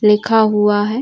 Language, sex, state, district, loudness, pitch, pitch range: Hindi, female, Uttar Pradesh, Varanasi, -14 LUFS, 210 Hz, 210-220 Hz